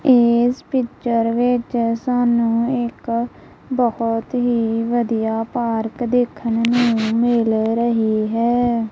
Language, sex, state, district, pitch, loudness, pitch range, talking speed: Punjabi, female, Punjab, Kapurthala, 235 Hz, -19 LUFS, 230-245 Hz, 95 wpm